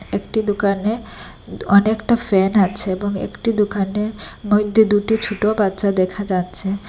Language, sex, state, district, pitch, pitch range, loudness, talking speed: Bengali, female, Assam, Hailakandi, 205 Hz, 195-215 Hz, -18 LUFS, 120 wpm